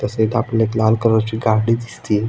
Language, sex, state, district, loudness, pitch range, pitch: Marathi, male, Maharashtra, Aurangabad, -18 LUFS, 110-115 Hz, 110 Hz